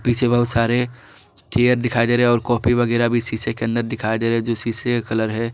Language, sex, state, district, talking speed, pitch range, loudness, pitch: Hindi, male, Jharkhand, Garhwa, 240 wpm, 115-120 Hz, -19 LUFS, 120 Hz